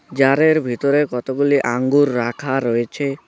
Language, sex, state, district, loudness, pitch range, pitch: Bengali, male, West Bengal, Cooch Behar, -18 LUFS, 120-145 Hz, 135 Hz